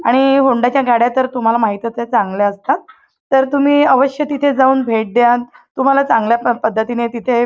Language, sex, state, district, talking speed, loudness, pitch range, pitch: Marathi, female, Maharashtra, Chandrapur, 160 wpm, -14 LUFS, 230-265 Hz, 245 Hz